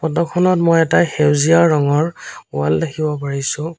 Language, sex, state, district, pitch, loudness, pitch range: Assamese, male, Assam, Sonitpur, 155 Hz, -16 LUFS, 145-165 Hz